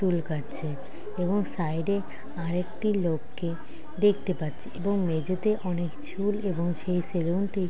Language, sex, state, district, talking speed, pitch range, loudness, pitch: Bengali, female, West Bengal, Purulia, 115 wpm, 165-200 Hz, -29 LUFS, 180 Hz